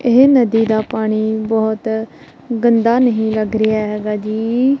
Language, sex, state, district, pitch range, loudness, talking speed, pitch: Punjabi, female, Punjab, Kapurthala, 215-235 Hz, -15 LUFS, 135 wpm, 220 Hz